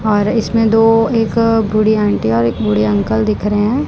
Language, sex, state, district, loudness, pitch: Hindi, male, Punjab, Kapurthala, -14 LUFS, 210 Hz